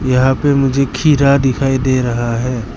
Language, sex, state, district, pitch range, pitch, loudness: Hindi, male, Arunachal Pradesh, Lower Dibang Valley, 125-140 Hz, 130 Hz, -14 LUFS